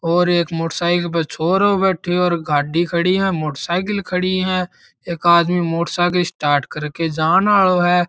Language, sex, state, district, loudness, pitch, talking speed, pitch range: Marwari, male, Rajasthan, Churu, -17 LUFS, 175 Hz, 170 wpm, 165-180 Hz